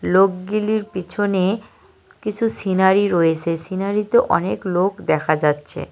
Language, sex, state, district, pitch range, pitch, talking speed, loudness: Bengali, male, West Bengal, Cooch Behar, 175-210 Hz, 190 Hz, 110 wpm, -19 LUFS